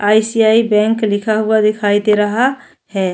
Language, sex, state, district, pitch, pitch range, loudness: Hindi, female, Chhattisgarh, Jashpur, 215 Hz, 210-220 Hz, -14 LUFS